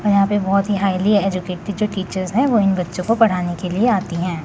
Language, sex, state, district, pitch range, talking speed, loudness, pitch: Hindi, female, Chandigarh, Chandigarh, 180-205 Hz, 245 wpm, -18 LUFS, 195 Hz